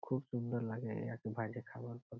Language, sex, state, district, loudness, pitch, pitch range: Bengali, male, West Bengal, Malda, -42 LUFS, 120 Hz, 115-120 Hz